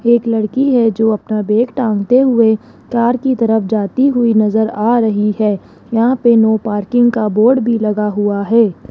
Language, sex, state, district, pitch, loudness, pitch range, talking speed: Hindi, female, Rajasthan, Jaipur, 225 Hz, -14 LUFS, 215-240 Hz, 180 wpm